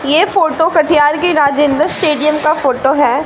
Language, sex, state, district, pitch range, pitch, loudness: Hindi, female, Bihar, Katihar, 295-320 Hz, 305 Hz, -12 LUFS